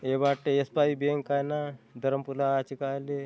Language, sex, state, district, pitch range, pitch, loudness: Halbi, male, Chhattisgarh, Bastar, 135-145 Hz, 140 Hz, -29 LUFS